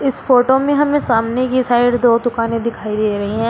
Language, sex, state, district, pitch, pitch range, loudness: Hindi, female, Uttar Pradesh, Shamli, 240 Hz, 230-255 Hz, -15 LUFS